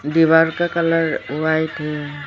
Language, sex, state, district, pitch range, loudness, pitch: Hindi, female, Arunachal Pradesh, Lower Dibang Valley, 150-165 Hz, -18 LUFS, 160 Hz